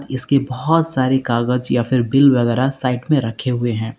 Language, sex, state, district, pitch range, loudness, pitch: Hindi, male, Uttar Pradesh, Lalitpur, 120-135 Hz, -17 LUFS, 130 Hz